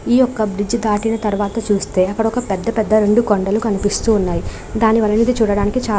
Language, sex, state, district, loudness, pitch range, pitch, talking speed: Telugu, female, Andhra Pradesh, Krishna, -17 LUFS, 205-225 Hz, 215 Hz, 140 wpm